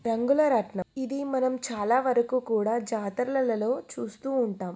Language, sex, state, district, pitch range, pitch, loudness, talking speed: Telugu, female, Telangana, Nalgonda, 225-260 Hz, 245 Hz, -27 LUFS, 125 wpm